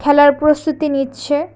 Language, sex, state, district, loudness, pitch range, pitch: Bengali, female, Tripura, West Tripura, -15 LUFS, 285-305 Hz, 290 Hz